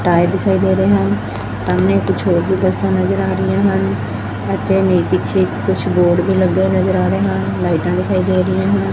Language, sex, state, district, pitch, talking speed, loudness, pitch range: Punjabi, female, Punjab, Fazilka, 95 Hz, 220 wpm, -15 LUFS, 95-100 Hz